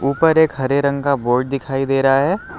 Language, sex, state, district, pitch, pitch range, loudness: Hindi, male, Uttar Pradesh, Lucknow, 140 Hz, 135-140 Hz, -17 LUFS